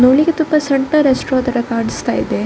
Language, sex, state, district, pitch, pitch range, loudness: Kannada, female, Karnataka, Dakshina Kannada, 260 Hz, 235-295 Hz, -15 LUFS